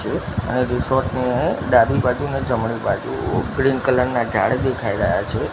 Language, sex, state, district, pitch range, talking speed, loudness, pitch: Gujarati, male, Gujarat, Gandhinagar, 115-130 Hz, 165 wpm, -20 LUFS, 125 Hz